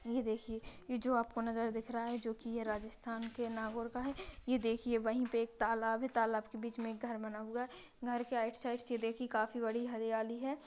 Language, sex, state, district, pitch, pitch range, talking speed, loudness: Hindi, female, Rajasthan, Nagaur, 230 Hz, 225-240 Hz, 235 wpm, -39 LUFS